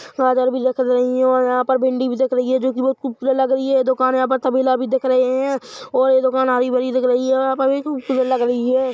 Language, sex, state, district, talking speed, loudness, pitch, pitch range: Hindi, male, Chhattisgarh, Bilaspur, 270 wpm, -18 LUFS, 260 Hz, 255-265 Hz